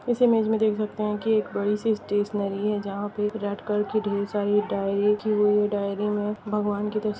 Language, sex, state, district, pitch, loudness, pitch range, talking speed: Hindi, female, Jharkhand, Jamtara, 210 Hz, -25 LUFS, 205-215 Hz, 225 wpm